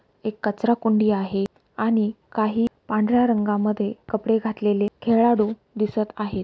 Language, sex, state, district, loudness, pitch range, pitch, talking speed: Marathi, female, Maharashtra, Solapur, -23 LUFS, 210-225 Hz, 215 Hz, 120 wpm